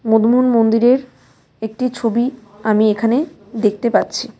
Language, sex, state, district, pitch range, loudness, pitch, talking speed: Bengali, female, West Bengal, Cooch Behar, 220-250 Hz, -16 LUFS, 230 Hz, 95 wpm